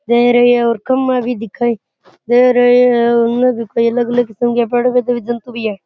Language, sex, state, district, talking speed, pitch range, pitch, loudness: Rajasthani, male, Rajasthan, Churu, 245 wpm, 235-245 Hz, 240 Hz, -13 LUFS